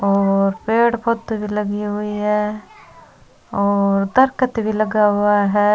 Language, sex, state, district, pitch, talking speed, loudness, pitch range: Rajasthani, female, Rajasthan, Churu, 210 Hz, 135 wpm, -18 LUFS, 200-220 Hz